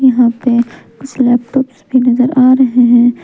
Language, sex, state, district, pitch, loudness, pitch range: Hindi, female, Jharkhand, Palamu, 250 Hz, -11 LUFS, 245-260 Hz